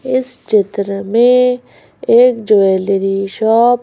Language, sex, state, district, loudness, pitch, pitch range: Hindi, female, Madhya Pradesh, Bhopal, -13 LUFS, 225 Hz, 195-250 Hz